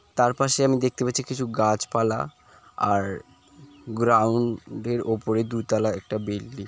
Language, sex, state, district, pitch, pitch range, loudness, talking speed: Bengali, male, West Bengal, Jalpaiguri, 115 Hz, 110-125 Hz, -24 LUFS, 135 wpm